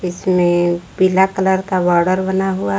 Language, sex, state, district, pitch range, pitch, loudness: Hindi, female, Jharkhand, Palamu, 175-190 Hz, 185 Hz, -16 LUFS